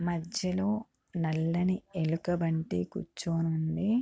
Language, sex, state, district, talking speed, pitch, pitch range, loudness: Telugu, female, Andhra Pradesh, Guntur, 75 wpm, 170 Hz, 160-185 Hz, -32 LUFS